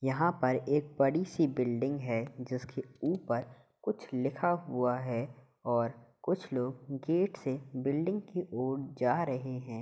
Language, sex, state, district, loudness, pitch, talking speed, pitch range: Hindi, male, Uttar Pradesh, Hamirpur, -33 LUFS, 135 Hz, 145 wpm, 125-145 Hz